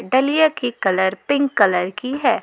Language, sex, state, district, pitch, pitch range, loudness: Hindi, female, Jharkhand, Garhwa, 255 Hz, 190-280 Hz, -18 LUFS